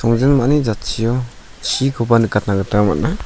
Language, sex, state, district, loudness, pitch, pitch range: Garo, male, Meghalaya, South Garo Hills, -17 LUFS, 115 Hz, 105-125 Hz